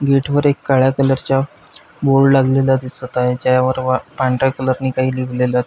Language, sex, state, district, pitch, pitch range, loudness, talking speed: Marathi, male, Maharashtra, Pune, 130 Hz, 130-135 Hz, -16 LUFS, 190 wpm